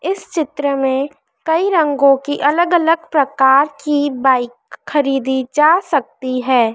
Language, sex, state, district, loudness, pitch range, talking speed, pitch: Hindi, female, Madhya Pradesh, Dhar, -15 LUFS, 265-315 Hz, 135 wpm, 285 Hz